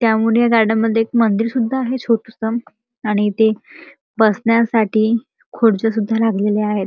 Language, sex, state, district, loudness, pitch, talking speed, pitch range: Marathi, male, Maharashtra, Chandrapur, -17 LUFS, 225 Hz, 140 wpm, 220-235 Hz